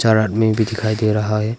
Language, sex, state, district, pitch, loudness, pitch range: Hindi, male, Arunachal Pradesh, Longding, 110 Hz, -18 LUFS, 105-110 Hz